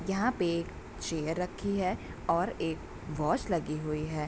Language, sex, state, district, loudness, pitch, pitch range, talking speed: Hindi, female, Bihar, Bhagalpur, -33 LUFS, 170 Hz, 155-190 Hz, 155 wpm